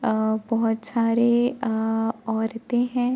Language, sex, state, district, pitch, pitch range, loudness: Hindi, female, Uttar Pradesh, Varanasi, 230 Hz, 225-240 Hz, -23 LUFS